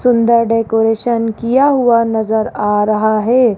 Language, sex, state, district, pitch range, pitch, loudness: Hindi, female, Rajasthan, Jaipur, 220-240 Hz, 230 Hz, -13 LUFS